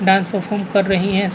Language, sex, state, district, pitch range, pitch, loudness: Hindi, male, Chhattisgarh, Rajnandgaon, 190-200 Hz, 195 Hz, -18 LUFS